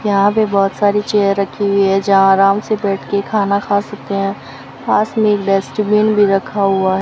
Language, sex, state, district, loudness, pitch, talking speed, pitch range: Hindi, female, Rajasthan, Bikaner, -15 LUFS, 200 Hz, 205 wpm, 195-210 Hz